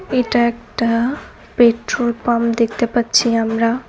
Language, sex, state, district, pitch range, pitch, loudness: Bengali, female, West Bengal, Cooch Behar, 230-240 Hz, 235 Hz, -17 LUFS